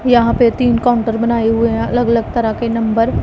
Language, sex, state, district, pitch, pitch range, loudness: Hindi, female, Punjab, Pathankot, 230 Hz, 225-240 Hz, -14 LUFS